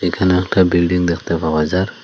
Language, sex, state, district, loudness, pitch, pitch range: Bengali, male, Assam, Hailakandi, -16 LUFS, 90 Hz, 85-90 Hz